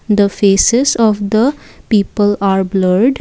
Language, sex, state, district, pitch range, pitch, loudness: English, female, Assam, Kamrup Metropolitan, 195-230 Hz, 205 Hz, -13 LUFS